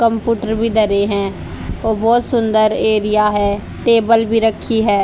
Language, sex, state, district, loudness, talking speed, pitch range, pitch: Hindi, female, Haryana, Charkhi Dadri, -15 LUFS, 155 wpm, 210-230 Hz, 220 Hz